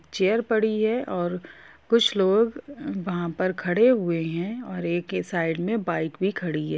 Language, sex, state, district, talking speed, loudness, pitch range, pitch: Hindi, female, Jharkhand, Jamtara, 160 wpm, -25 LUFS, 175-225 Hz, 190 Hz